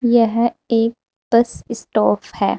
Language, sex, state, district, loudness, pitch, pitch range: Hindi, female, Uttar Pradesh, Saharanpur, -18 LUFS, 235 Hz, 230-235 Hz